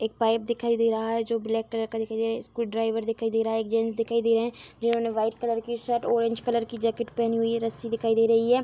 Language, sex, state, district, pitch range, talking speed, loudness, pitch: Hindi, female, Bihar, Gopalganj, 225-235 Hz, 300 wpm, -26 LUFS, 230 Hz